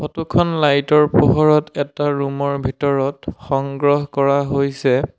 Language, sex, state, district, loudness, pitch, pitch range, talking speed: Assamese, male, Assam, Sonitpur, -17 LUFS, 140 Hz, 140-150 Hz, 140 wpm